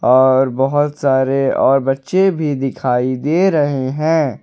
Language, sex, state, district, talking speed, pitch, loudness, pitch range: Hindi, male, Jharkhand, Ranchi, 135 wpm, 135 Hz, -15 LUFS, 130-150 Hz